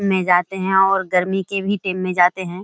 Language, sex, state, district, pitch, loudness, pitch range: Hindi, female, Bihar, Kishanganj, 190 Hz, -18 LUFS, 180-195 Hz